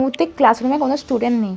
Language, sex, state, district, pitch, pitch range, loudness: Bengali, female, West Bengal, North 24 Parganas, 265 Hz, 235-280 Hz, -17 LUFS